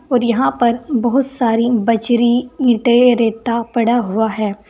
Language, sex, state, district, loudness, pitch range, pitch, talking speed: Hindi, female, Uttar Pradesh, Saharanpur, -15 LUFS, 230-245 Hz, 235 Hz, 140 wpm